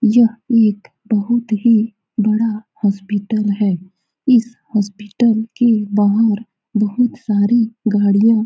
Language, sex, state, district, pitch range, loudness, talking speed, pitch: Hindi, female, Bihar, Saran, 205-230 Hz, -16 LUFS, 105 wpm, 215 Hz